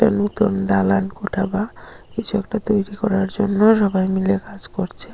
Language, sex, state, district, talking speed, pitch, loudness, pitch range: Bengali, female, Tripura, Unakoti, 140 wpm, 200 Hz, -20 LUFS, 195-210 Hz